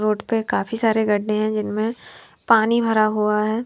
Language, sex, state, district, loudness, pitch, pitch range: Hindi, female, Himachal Pradesh, Shimla, -20 LUFS, 215 Hz, 215-225 Hz